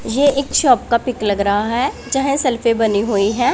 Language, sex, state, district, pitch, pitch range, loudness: Hindi, female, Punjab, Pathankot, 235 Hz, 210-260 Hz, -16 LUFS